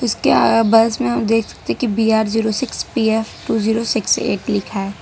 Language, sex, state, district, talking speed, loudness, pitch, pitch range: Hindi, female, Gujarat, Valsad, 205 wpm, -17 LUFS, 225 Hz, 220-230 Hz